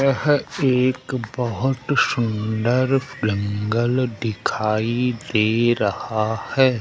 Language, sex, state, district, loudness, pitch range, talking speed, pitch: Hindi, male, Madhya Pradesh, Umaria, -21 LUFS, 110-130 Hz, 80 wpm, 120 Hz